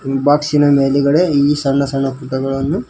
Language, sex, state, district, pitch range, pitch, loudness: Kannada, male, Karnataka, Koppal, 135-145 Hz, 140 Hz, -15 LUFS